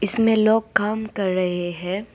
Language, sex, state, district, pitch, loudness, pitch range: Hindi, female, Arunachal Pradesh, Papum Pare, 205 Hz, -21 LUFS, 185-220 Hz